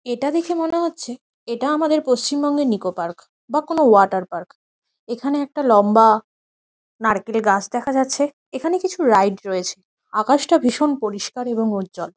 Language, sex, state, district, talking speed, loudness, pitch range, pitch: Bengali, female, West Bengal, Kolkata, 150 wpm, -19 LUFS, 205-290 Hz, 245 Hz